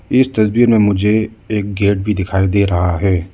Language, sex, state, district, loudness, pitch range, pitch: Hindi, male, Arunachal Pradesh, Lower Dibang Valley, -15 LUFS, 95-110 Hz, 100 Hz